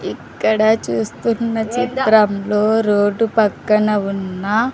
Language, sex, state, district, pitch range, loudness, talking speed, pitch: Telugu, female, Andhra Pradesh, Sri Satya Sai, 205-225 Hz, -17 LUFS, 90 wpm, 215 Hz